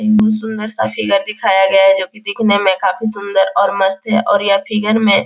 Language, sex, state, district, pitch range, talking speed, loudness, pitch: Hindi, female, Bihar, Jahanabad, 195-215 Hz, 230 wpm, -14 LUFS, 200 Hz